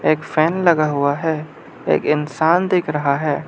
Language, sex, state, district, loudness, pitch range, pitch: Hindi, male, Arunachal Pradesh, Lower Dibang Valley, -18 LUFS, 150-160 Hz, 155 Hz